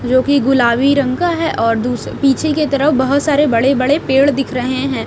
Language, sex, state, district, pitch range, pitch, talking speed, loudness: Hindi, female, Haryana, Rohtak, 255-285 Hz, 275 Hz, 225 wpm, -14 LUFS